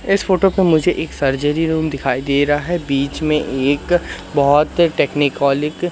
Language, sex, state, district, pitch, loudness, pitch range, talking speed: Hindi, male, Madhya Pradesh, Katni, 150 Hz, -17 LUFS, 140-175 Hz, 170 wpm